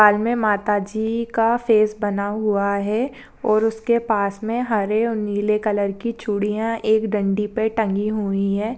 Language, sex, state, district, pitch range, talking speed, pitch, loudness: Hindi, female, Maharashtra, Dhule, 205-225 Hz, 165 wpm, 215 Hz, -21 LUFS